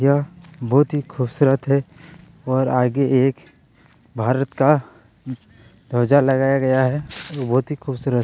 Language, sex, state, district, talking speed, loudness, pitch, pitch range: Hindi, male, Chhattisgarh, Kabirdham, 130 wpm, -19 LUFS, 135 Hz, 125-145 Hz